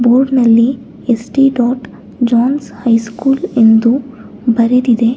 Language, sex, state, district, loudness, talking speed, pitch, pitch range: Kannada, female, Karnataka, Bangalore, -12 LUFS, 95 wpm, 240 Hz, 230-260 Hz